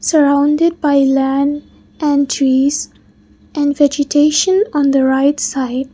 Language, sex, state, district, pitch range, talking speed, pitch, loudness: English, female, Mizoram, Aizawl, 275-295 Hz, 110 wpm, 285 Hz, -14 LUFS